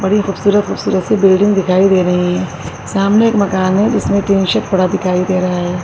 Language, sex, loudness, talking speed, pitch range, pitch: Urdu, female, -13 LUFS, 215 wpm, 185-200 Hz, 190 Hz